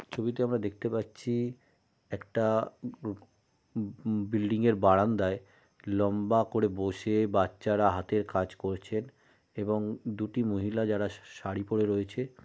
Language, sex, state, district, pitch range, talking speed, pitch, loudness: Bengali, male, West Bengal, Malda, 100-115 Hz, 110 wpm, 105 Hz, -31 LUFS